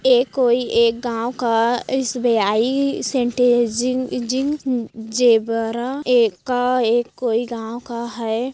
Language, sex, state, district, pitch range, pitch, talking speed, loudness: Hindi, female, Chhattisgarh, Korba, 230-250 Hz, 240 Hz, 105 wpm, -19 LUFS